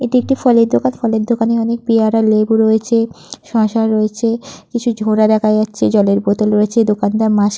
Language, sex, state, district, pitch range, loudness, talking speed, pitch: Bengali, female, West Bengal, Purulia, 215-230 Hz, -14 LUFS, 175 wpm, 220 Hz